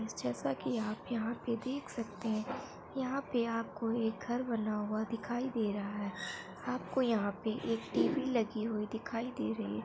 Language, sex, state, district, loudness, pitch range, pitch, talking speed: Hindi, female, Bihar, Muzaffarpur, -36 LUFS, 210-240 Hz, 225 Hz, 185 wpm